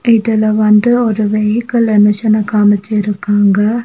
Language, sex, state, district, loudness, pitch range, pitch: Tamil, female, Tamil Nadu, Nilgiris, -12 LUFS, 210-225 Hz, 215 Hz